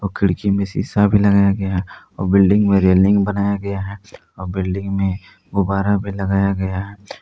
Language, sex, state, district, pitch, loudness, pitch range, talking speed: Hindi, male, Jharkhand, Palamu, 100 Hz, -18 LUFS, 95-100 Hz, 165 wpm